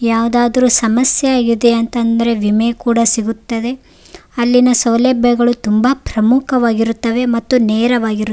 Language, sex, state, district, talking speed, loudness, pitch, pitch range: Kannada, female, Karnataka, Raichur, 100 wpm, -13 LUFS, 235 Hz, 230-245 Hz